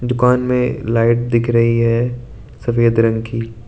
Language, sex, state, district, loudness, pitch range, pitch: Hindi, male, Arunachal Pradesh, Lower Dibang Valley, -16 LUFS, 115-120 Hz, 115 Hz